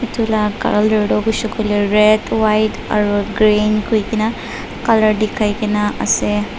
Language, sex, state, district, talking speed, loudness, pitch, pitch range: Nagamese, female, Nagaland, Dimapur, 165 wpm, -16 LUFS, 215 Hz, 210-220 Hz